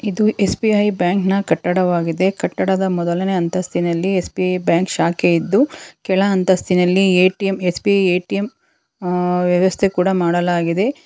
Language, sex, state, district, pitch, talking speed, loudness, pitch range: Kannada, female, Karnataka, Bangalore, 185 Hz, 115 wpm, -17 LUFS, 180-195 Hz